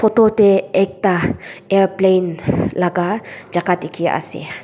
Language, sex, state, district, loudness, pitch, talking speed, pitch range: Nagamese, female, Nagaland, Dimapur, -17 LUFS, 190 Hz, 105 wpm, 175-195 Hz